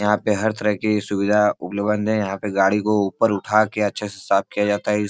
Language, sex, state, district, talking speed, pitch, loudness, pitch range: Hindi, male, Bihar, Jahanabad, 270 wpm, 105 Hz, -20 LUFS, 100-105 Hz